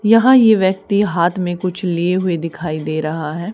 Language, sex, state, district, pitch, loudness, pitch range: Hindi, female, Haryana, Charkhi Dadri, 180 Hz, -16 LUFS, 165-200 Hz